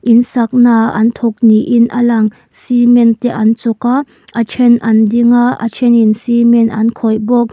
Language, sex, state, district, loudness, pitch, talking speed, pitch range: Mizo, female, Mizoram, Aizawl, -11 LUFS, 235 Hz, 185 wpm, 225-240 Hz